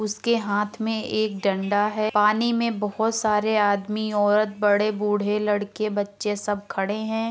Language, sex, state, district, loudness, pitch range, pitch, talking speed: Hindi, female, Uttar Pradesh, Varanasi, -23 LUFS, 205-215 Hz, 210 Hz, 150 wpm